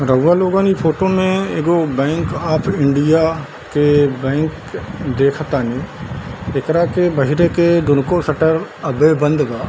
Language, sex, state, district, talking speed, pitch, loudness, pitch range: Hindi, male, Bihar, Darbhanga, 150 wpm, 155 Hz, -16 LUFS, 140-170 Hz